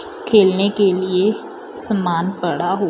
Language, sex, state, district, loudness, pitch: Hindi, female, Punjab, Fazilka, -17 LUFS, 200 Hz